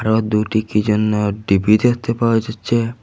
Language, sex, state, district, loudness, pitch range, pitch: Bengali, male, Assam, Hailakandi, -17 LUFS, 105-115 Hz, 110 Hz